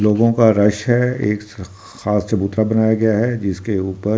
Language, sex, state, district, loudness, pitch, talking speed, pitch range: Hindi, male, Delhi, New Delhi, -17 LUFS, 105 Hz, 215 wpm, 105-110 Hz